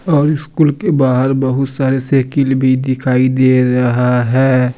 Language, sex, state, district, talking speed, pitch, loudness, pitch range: Hindi, male, Jharkhand, Deoghar, 150 wpm, 130 Hz, -13 LUFS, 125-140 Hz